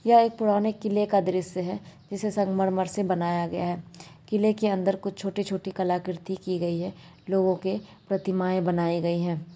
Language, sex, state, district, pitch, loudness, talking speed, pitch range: Hindi, female, Maharashtra, Dhule, 190 Hz, -27 LUFS, 175 wpm, 175-200 Hz